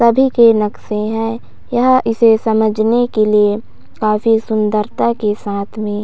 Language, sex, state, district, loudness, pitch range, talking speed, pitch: Hindi, female, Chhattisgarh, Raigarh, -14 LUFS, 210-235 Hz, 140 wpm, 220 Hz